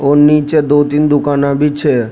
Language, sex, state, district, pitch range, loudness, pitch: Rajasthani, male, Rajasthan, Nagaur, 140-150 Hz, -11 LUFS, 145 Hz